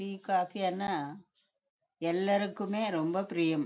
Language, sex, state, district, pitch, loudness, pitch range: Tamil, female, Karnataka, Chamarajanagar, 195 Hz, -32 LUFS, 170-205 Hz